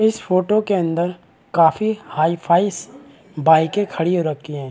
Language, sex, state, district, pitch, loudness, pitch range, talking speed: Hindi, male, Chhattisgarh, Balrampur, 175 Hz, -19 LUFS, 160-200 Hz, 140 wpm